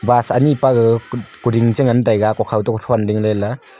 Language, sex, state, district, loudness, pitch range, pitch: Wancho, male, Arunachal Pradesh, Longding, -16 LUFS, 110-125 Hz, 115 Hz